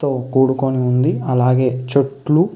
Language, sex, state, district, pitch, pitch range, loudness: Telugu, male, Andhra Pradesh, Visakhapatnam, 130 Hz, 125-140 Hz, -17 LUFS